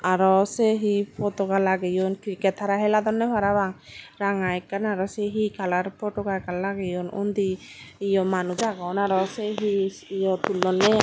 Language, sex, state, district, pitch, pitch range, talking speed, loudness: Chakma, female, Tripura, Dhalai, 195 Hz, 190-205 Hz, 135 wpm, -25 LUFS